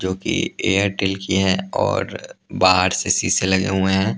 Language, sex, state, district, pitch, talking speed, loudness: Hindi, male, Punjab, Pathankot, 95 Hz, 185 wpm, -19 LUFS